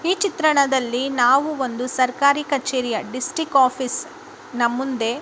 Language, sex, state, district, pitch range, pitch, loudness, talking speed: Kannada, female, Karnataka, Bijapur, 250-305 Hz, 265 Hz, -20 LUFS, 115 wpm